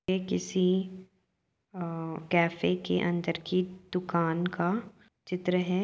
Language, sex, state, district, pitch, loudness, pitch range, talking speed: Hindi, female, Uttar Pradesh, Jyotiba Phule Nagar, 180 Hz, -30 LUFS, 170-185 Hz, 115 wpm